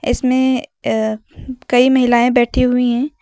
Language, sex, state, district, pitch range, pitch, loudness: Hindi, female, Uttar Pradesh, Lucknow, 245-260 Hz, 250 Hz, -15 LUFS